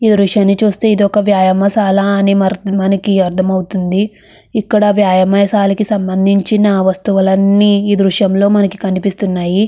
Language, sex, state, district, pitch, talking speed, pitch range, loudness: Telugu, female, Andhra Pradesh, Krishna, 200 Hz, 105 wpm, 190-205 Hz, -12 LUFS